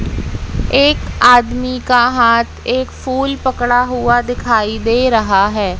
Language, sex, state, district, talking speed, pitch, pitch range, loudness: Hindi, female, Madhya Pradesh, Katni, 125 wpm, 245 Hz, 230-255 Hz, -14 LUFS